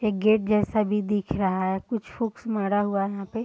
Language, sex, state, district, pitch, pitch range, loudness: Hindi, female, Bihar, Sitamarhi, 205 Hz, 195-215 Hz, -25 LUFS